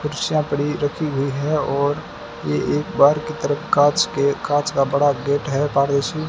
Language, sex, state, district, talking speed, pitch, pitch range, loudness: Hindi, male, Rajasthan, Bikaner, 200 wpm, 145 Hz, 140-150 Hz, -20 LUFS